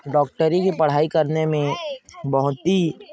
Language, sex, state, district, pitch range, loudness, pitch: Hindi, male, Chhattisgarh, Korba, 145-180 Hz, -21 LUFS, 155 Hz